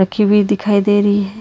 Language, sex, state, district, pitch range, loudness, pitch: Hindi, female, Karnataka, Bangalore, 205-210 Hz, -14 LUFS, 205 Hz